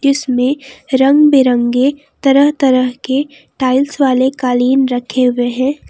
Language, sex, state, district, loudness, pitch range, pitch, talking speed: Hindi, female, Jharkhand, Palamu, -13 LUFS, 255-280 Hz, 265 Hz, 120 wpm